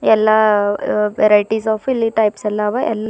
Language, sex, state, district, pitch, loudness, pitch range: Kannada, female, Karnataka, Bidar, 215 Hz, -16 LUFS, 210-220 Hz